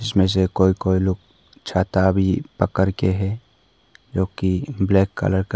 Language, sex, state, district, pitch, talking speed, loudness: Hindi, male, Arunachal Pradesh, Papum Pare, 95 Hz, 160 wpm, -21 LUFS